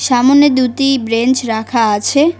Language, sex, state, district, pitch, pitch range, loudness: Bengali, female, West Bengal, Cooch Behar, 255 Hz, 230-275 Hz, -12 LUFS